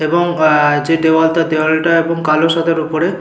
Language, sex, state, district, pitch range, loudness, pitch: Bengali, male, West Bengal, Paschim Medinipur, 155-165 Hz, -13 LUFS, 160 Hz